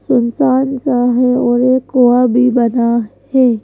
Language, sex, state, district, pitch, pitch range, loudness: Hindi, female, Madhya Pradesh, Bhopal, 250 Hz, 240-255 Hz, -13 LUFS